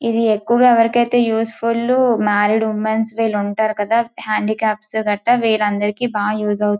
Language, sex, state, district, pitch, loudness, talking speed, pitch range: Telugu, female, Andhra Pradesh, Srikakulam, 220 Hz, -17 LUFS, 125 wpm, 210-230 Hz